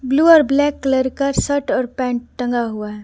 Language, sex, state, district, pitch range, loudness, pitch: Hindi, female, Bihar, Patna, 245-285 Hz, -17 LUFS, 260 Hz